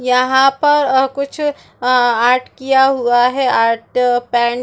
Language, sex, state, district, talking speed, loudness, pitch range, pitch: Hindi, female, Chhattisgarh, Bastar, 155 wpm, -14 LUFS, 245-270 Hz, 255 Hz